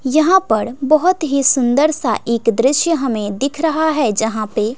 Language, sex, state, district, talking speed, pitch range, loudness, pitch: Hindi, female, Bihar, West Champaran, 175 wpm, 230-310 Hz, -15 LUFS, 270 Hz